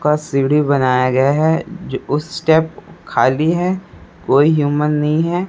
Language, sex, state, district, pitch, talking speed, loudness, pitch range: Hindi, male, Chhattisgarh, Raipur, 150 Hz, 155 wpm, -16 LUFS, 140-160 Hz